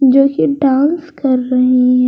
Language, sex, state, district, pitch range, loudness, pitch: Hindi, female, Jharkhand, Garhwa, 255-280 Hz, -13 LUFS, 265 Hz